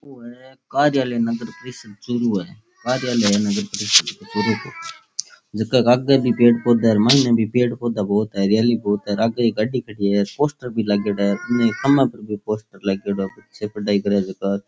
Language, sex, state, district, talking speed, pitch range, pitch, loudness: Rajasthani, male, Rajasthan, Churu, 195 wpm, 100-125 Hz, 115 Hz, -19 LUFS